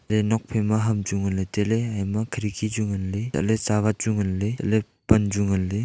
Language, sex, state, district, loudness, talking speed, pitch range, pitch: Wancho, male, Arunachal Pradesh, Longding, -24 LUFS, 185 wpm, 100-110 Hz, 105 Hz